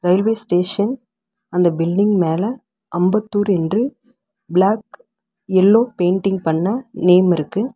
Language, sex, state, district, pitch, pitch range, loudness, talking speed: Tamil, female, Tamil Nadu, Chennai, 200 Hz, 180-220 Hz, -17 LUFS, 100 wpm